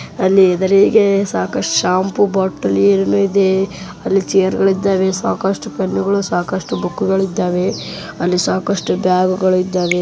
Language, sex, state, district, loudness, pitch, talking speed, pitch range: Kannada, male, Karnataka, Bellary, -15 LUFS, 190 Hz, 120 wpm, 180-195 Hz